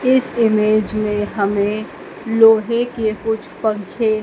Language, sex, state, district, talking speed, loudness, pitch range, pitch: Hindi, female, Madhya Pradesh, Dhar, 115 wpm, -17 LUFS, 215-225 Hz, 220 Hz